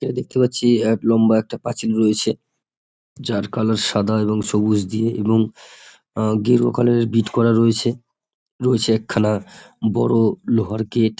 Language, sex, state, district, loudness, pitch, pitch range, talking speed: Bengali, male, West Bengal, North 24 Parganas, -19 LUFS, 110 Hz, 110-120 Hz, 150 wpm